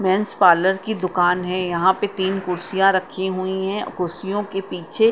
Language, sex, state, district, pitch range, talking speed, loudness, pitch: Hindi, female, Punjab, Kapurthala, 180-195 Hz, 175 wpm, -20 LUFS, 190 Hz